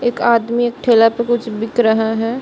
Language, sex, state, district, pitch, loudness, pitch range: Hindi, female, Bihar, Saran, 235 Hz, -15 LUFS, 225-240 Hz